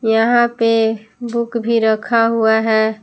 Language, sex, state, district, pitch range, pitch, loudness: Hindi, female, Jharkhand, Palamu, 220-235 Hz, 225 Hz, -15 LUFS